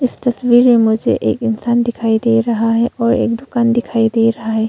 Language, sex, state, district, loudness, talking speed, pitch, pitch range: Hindi, female, Arunachal Pradesh, Longding, -14 LUFS, 215 wpm, 230 Hz, 225-240 Hz